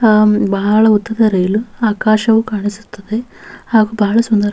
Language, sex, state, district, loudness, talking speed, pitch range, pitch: Kannada, female, Karnataka, Bellary, -14 LUFS, 130 wpm, 205-220 Hz, 215 Hz